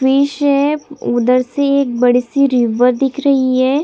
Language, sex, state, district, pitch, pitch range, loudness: Hindi, female, Chhattisgarh, Sukma, 270 Hz, 250-280 Hz, -14 LUFS